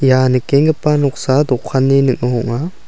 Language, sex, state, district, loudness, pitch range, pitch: Garo, male, Meghalaya, South Garo Hills, -14 LUFS, 125-145 Hz, 135 Hz